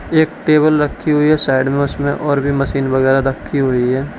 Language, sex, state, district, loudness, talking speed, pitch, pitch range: Hindi, male, Uttar Pradesh, Lalitpur, -15 LUFS, 215 wpm, 140 Hz, 135-150 Hz